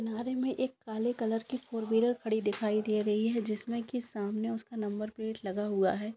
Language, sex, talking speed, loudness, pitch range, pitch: Maithili, female, 215 wpm, -33 LUFS, 210-235 Hz, 220 Hz